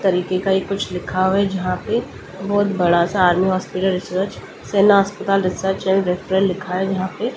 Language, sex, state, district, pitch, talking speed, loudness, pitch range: Hindi, female, Delhi, New Delhi, 190 Hz, 185 wpm, -19 LUFS, 185-195 Hz